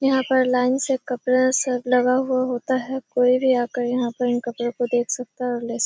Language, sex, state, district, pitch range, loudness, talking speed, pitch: Hindi, female, Bihar, Kishanganj, 245-260 Hz, -21 LUFS, 255 wpm, 250 Hz